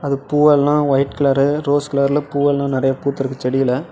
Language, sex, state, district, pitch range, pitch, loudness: Tamil, male, Tamil Nadu, Namakkal, 135-145 Hz, 140 Hz, -17 LUFS